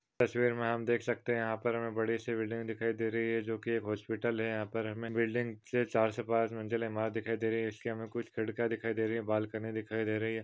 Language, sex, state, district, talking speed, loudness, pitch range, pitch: Hindi, male, Maharashtra, Pune, 255 wpm, -34 LUFS, 110-115 Hz, 115 Hz